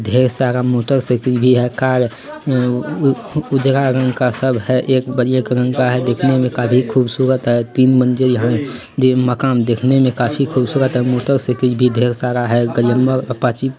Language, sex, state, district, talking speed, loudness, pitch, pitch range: Hindi, male, Bihar, Bhagalpur, 180 wpm, -15 LUFS, 125 Hz, 125-130 Hz